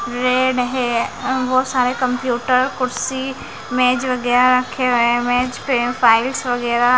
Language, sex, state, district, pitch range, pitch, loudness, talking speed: Hindi, female, Bihar, West Champaran, 245-255 Hz, 250 Hz, -17 LUFS, 130 wpm